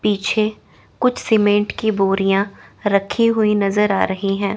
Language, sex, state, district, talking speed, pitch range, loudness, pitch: Hindi, female, Chandigarh, Chandigarh, 145 wpm, 200-215 Hz, -18 LUFS, 205 Hz